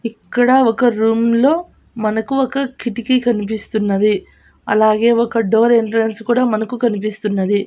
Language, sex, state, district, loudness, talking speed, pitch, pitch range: Telugu, female, Andhra Pradesh, Annamaya, -16 LUFS, 115 wpm, 230 Hz, 215-245 Hz